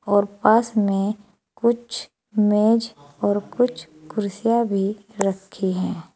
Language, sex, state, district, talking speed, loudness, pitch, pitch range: Hindi, female, Uttar Pradesh, Saharanpur, 105 wpm, -22 LUFS, 210 Hz, 200-225 Hz